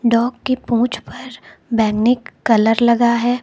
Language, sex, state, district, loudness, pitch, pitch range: Hindi, female, Uttar Pradesh, Lucknow, -16 LUFS, 235 Hz, 230-250 Hz